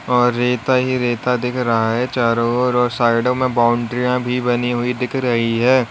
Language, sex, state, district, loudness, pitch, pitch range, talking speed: Hindi, male, Uttar Pradesh, Lalitpur, -17 LUFS, 125 Hz, 120-125 Hz, 195 wpm